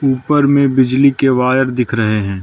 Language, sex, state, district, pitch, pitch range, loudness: Hindi, male, Arunachal Pradesh, Lower Dibang Valley, 130 Hz, 125-140 Hz, -13 LUFS